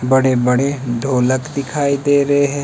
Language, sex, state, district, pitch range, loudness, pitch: Hindi, male, Himachal Pradesh, Shimla, 130-140 Hz, -16 LUFS, 135 Hz